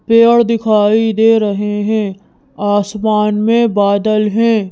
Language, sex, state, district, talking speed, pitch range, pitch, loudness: Hindi, female, Madhya Pradesh, Bhopal, 115 wpm, 205-225 Hz, 215 Hz, -13 LUFS